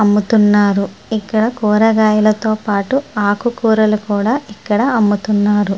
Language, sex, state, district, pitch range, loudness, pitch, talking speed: Telugu, female, Andhra Pradesh, Guntur, 205-220 Hz, -14 LUFS, 215 Hz, 85 wpm